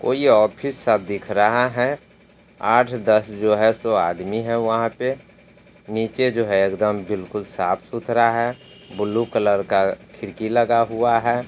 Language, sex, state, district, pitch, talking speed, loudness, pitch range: Hindi, male, Bihar, Sitamarhi, 115 Hz, 150 wpm, -20 LUFS, 105-120 Hz